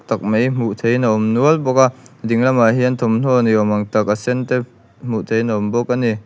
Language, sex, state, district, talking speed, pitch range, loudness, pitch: Mizo, male, Mizoram, Aizawl, 260 wpm, 110-125 Hz, -17 LUFS, 115 Hz